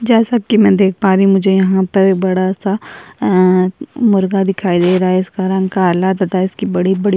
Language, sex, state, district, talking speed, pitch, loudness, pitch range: Hindi, female, Uttarakhand, Tehri Garhwal, 210 wpm, 190 Hz, -13 LUFS, 185-195 Hz